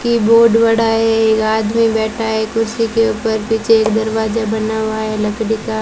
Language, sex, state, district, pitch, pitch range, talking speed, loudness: Hindi, female, Rajasthan, Bikaner, 220 Hz, 220-225 Hz, 175 wpm, -15 LUFS